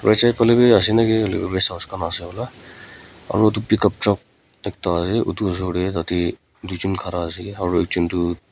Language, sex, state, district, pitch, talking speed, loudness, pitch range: Nagamese, female, Nagaland, Kohima, 95 Hz, 160 wpm, -19 LUFS, 85-110 Hz